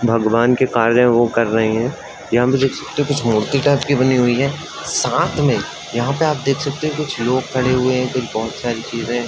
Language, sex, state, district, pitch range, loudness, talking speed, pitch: Hindi, male, Uttar Pradesh, Varanasi, 115-135 Hz, -17 LUFS, 260 wpm, 125 Hz